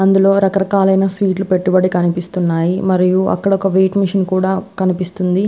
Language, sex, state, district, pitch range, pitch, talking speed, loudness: Telugu, female, Andhra Pradesh, Visakhapatnam, 185-195 Hz, 190 Hz, 140 wpm, -14 LUFS